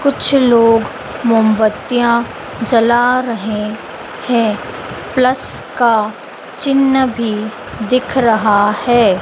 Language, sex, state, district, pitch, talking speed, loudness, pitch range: Hindi, female, Madhya Pradesh, Dhar, 235 Hz, 85 wpm, -14 LUFS, 220-255 Hz